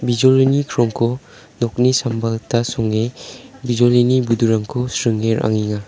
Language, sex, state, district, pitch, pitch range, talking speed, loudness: Garo, male, Meghalaya, South Garo Hills, 120 Hz, 115-125 Hz, 100 wpm, -17 LUFS